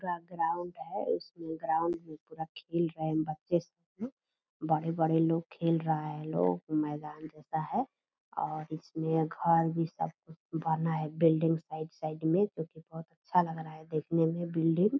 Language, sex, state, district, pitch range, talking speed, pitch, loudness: Hindi, female, Bihar, Purnia, 155-170 Hz, 180 wpm, 160 Hz, -32 LUFS